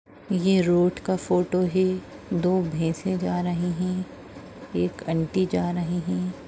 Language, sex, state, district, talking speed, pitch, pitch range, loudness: Hindi, female, Chhattisgarh, Rajnandgaon, 140 wpm, 180 Hz, 175-185 Hz, -25 LUFS